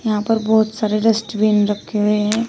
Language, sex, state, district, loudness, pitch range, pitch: Hindi, female, Uttar Pradesh, Shamli, -17 LUFS, 210-220 Hz, 215 Hz